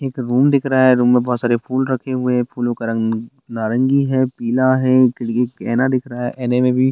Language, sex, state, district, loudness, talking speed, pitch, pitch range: Hindi, male, Bihar, Bhagalpur, -17 LUFS, 260 wpm, 125 Hz, 120-130 Hz